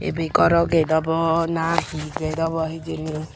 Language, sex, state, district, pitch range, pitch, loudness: Chakma, female, Tripura, Unakoti, 155-165 Hz, 160 Hz, -21 LUFS